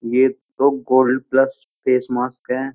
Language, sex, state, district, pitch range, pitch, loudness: Hindi, male, Uttar Pradesh, Jyotiba Phule Nagar, 125-135 Hz, 130 Hz, -19 LUFS